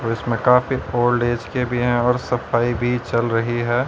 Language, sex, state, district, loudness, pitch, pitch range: Hindi, male, Haryana, Rohtak, -20 LUFS, 120 Hz, 120-125 Hz